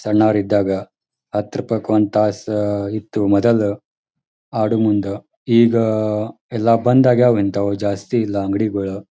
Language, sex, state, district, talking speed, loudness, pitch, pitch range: Kannada, male, Karnataka, Dharwad, 105 wpm, -18 LUFS, 105 Hz, 100-110 Hz